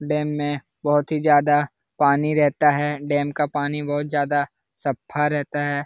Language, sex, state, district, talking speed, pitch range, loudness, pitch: Hindi, male, Bihar, Lakhisarai, 165 wpm, 145-150 Hz, -22 LUFS, 145 Hz